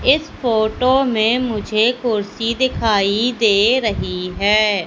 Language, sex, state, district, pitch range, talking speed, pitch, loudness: Hindi, female, Madhya Pradesh, Katni, 210-250 Hz, 110 wpm, 220 Hz, -17 LUFS